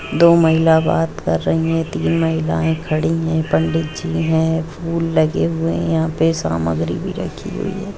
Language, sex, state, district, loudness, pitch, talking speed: Hindi, female, Jharkhand, Jamtara, -18 LUFS, 155 Hz, 175 wpm